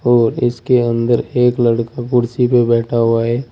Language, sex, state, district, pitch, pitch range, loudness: Hindi, male, Uttar Pradesh, Saharanpur, 120 Hz, 115-125 Hz, -15 LUFS